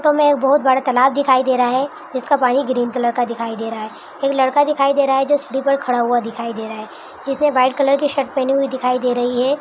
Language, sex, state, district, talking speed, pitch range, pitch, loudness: Hindi, female, Bihar, Araria, 275 wpm, 245-275 Hz, 260 Hz, -17 LUFS